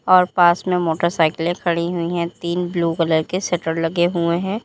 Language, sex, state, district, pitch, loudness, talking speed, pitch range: Hindi, female, Uttar Pradesh, Lalitpur, 170 Hz, -19 LUFS, 195 wpm, 170-175 Hz